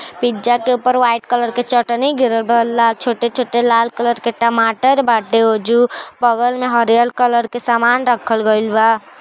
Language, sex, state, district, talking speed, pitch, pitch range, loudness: Hindi, female, Uttar Pradesh, Deoria, 175 wpm, 235 Hz, 230-245 Hz, -15 LUFS